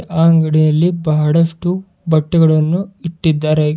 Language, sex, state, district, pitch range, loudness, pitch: Kannada, male, Karnataka, Bidar, 155-170 Hz, -14 LUFS, 165 Hz